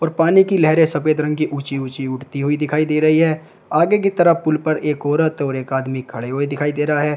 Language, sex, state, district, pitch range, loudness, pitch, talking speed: Hindi, male, Uttar Pradesh, Shamli, 140-160 Hz, -18 LUFS, 150 Hz, 250 wpm